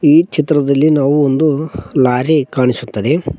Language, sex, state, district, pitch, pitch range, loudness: Kannada, male, Karnataka, Koppal, 145 Hz, 130-155 Hz, -14 LUFS